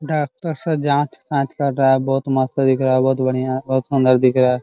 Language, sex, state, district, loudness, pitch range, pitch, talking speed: Hindi, male, Bihar, Araria, -18 LUFS, 130-145 Hz, 135 Hz, 235 wpm